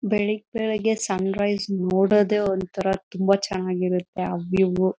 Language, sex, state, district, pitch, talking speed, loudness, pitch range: Kannada, female, Karnataka, Bellary, 195 Hz, 130 wpm, -23 LUFS, 185-210 Hz